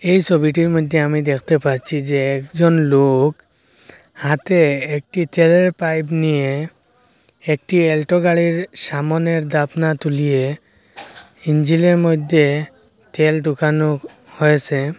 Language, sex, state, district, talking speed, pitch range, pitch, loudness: Bengali, male, Assam, Hailakandi, 100 wpm, 145-165 Hz, 155 Hz, -17 LUFS